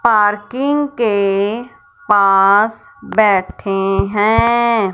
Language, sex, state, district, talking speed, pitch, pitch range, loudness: Hindi, female, Punjab, Fazilka, 60 wpm, 215 Hz, 200-235 Hz, -14 LUFS